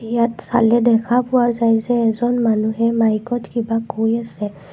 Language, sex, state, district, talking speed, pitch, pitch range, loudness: Assamese, female, Assam, Kamrup Metropolitan, 150 wpm, 230 Hz, 225-240 Hz, -18 LUFS